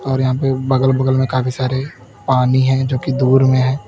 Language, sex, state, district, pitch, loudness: Hindi, male, Uttar Pradesh, Lalitpur, 130 Hz, -16 LUFS